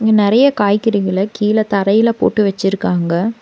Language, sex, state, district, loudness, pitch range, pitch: Tamil, female, Tamil Nadu, Nilgiris, -14 LUFS, 195-220 Hz, 205 Hz